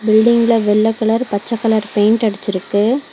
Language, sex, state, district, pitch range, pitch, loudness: Tamil, female, Tamil Nadu, Chennai, 210-230 Hz, 220 Hz, -15 LUFS